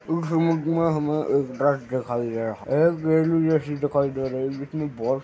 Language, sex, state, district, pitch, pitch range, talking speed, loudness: Hindi, male, Chhattisgarh, Kabirdham, 145 Hz, 130-160 Hz, 215 wpm, -24 LUFS